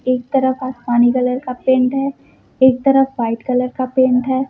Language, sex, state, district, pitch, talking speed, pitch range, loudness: Hindi, female, Uttar Pradesh, Lucknow, 255 Hz, 185 wpm, 250-260 Hz, -16 LUFS